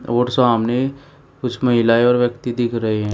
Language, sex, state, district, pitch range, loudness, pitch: Hindi, male, Uttar Pradesh, Shamli, 115-125 Hz, -18 LUFS, 120 Hz